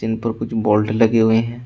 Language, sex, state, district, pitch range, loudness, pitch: Hindi, male, Uttar Pradesh, Shamli, 110-115 Hz, -17 LUFS, 110 Hz